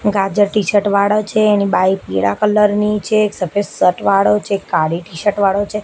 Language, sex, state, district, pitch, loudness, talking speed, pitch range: Gujarati, female, Gujarat, Gandhinagar, 205 Hz, -15 LUFS, 205 wpm, 195-210 Hz